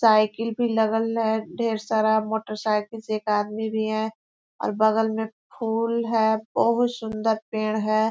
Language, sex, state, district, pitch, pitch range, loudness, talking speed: Hindi, female, Chhattisgarh, Korba, 220 Hz, 215-225 Hz, -24 LUFS, 165 wpm